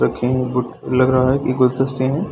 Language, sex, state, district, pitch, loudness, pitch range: Hindi, male, Chhattisgarh, Bilaspur, 130 Hz, -18 LUFS, 125-130 Hz